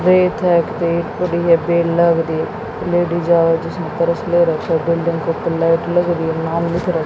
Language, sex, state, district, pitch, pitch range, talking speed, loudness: Hindi, female, Haryana, Jhajjar, 170 Hz, 165-175 Hz, 205 wpm, -17 LUFS